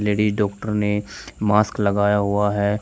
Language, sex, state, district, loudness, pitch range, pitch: Hindi, male, Uttar Pradesh, Shamli, -20 LUFS, 100-105 Hz, 105 Hz